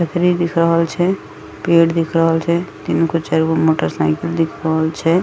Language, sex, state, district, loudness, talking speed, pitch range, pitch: Maithili, female, Bihar, Madhepura, -17 LUFS, 170 wpm, 160-170 Hz, 165 Hz